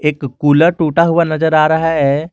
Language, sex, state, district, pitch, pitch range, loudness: Hindi, male, Jharkhand, Garhwa, 155 Hz, 150-165 Hz, -13 LUFS